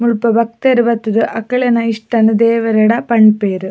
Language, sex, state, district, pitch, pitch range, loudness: Tulu, female, Karnataka, Dakshina Kannada, 230 Hz, 220-235 Hz, -13 LUFS